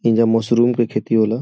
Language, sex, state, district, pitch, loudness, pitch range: Bhojpuri, male, Uttar Pradesh, Gorakhpur, 115 Hz, -17 LUFS, 110-120 Hz